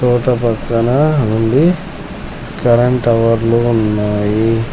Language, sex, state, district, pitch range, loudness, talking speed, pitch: Telugu, male, Telangana, Komaram Bheem, 115-125 Hz, -14 LUFS, 75 wpm, 115 Hz